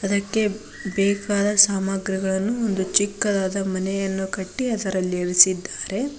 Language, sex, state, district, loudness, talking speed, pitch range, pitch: Kannada, female, Karnataka, Koppal, -21 LUFS, 85 wpm, 190-205 Hz, 195 Hz